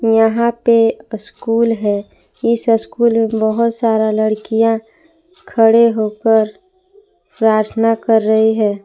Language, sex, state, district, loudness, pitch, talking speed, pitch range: Hindi, female, Jharkhand, Palamu, -15 LUFS, 225 Hz, 110 wpm, 220-235 Hz